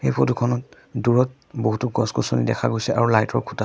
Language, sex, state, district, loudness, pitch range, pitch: Assamese, male, Assam, Sonitpur, -22 LUFS, 110-125 Hz, 115 Hz